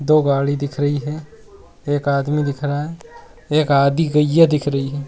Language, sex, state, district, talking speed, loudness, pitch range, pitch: Hindi, male, Bihar, Jahanabad, 190 wpm, -18 LUFS, 140-155 Hz, 145 Hz